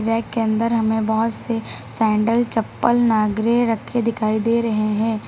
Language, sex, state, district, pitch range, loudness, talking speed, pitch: Hindi, female, Uttar Pradesh, Lucknow, 220-230 Hz, -19 LUFS, 160 wpm, 225 Hz